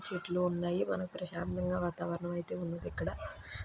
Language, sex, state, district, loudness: Telugu, female, Andhra Pradesh, Guntur, -36 LUFS